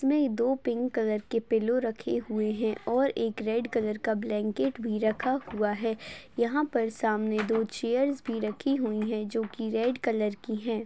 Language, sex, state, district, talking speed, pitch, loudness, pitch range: Hindi, female, Goa, North and South Goa, 195 wpm, 225 Hz, -29 LUFS, 215-245 Hz